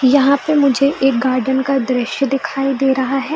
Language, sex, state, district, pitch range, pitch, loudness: Hindi, female, Bihar, Jamui, 260-275 Hz, 270 Hz, -16 LUFS